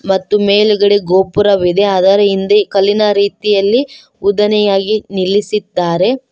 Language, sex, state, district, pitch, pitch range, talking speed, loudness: Kannada, female, Karnataka, Koppal, 200 Hz, 195-210 Hz, 85 wpm, -12 LUFS